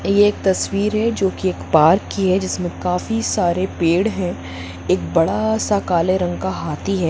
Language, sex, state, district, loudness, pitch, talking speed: Hindi, female, Jharkhand, Sahebganj, -19 LUFS, 185 Hz, 185 wpm